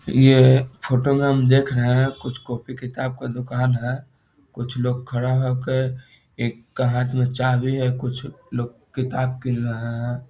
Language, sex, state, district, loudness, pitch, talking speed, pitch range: Hindi, male, Bihar, Muzaffarpur, -21 LUFS, 125 Hz, 180 wpm, 125-130 Hz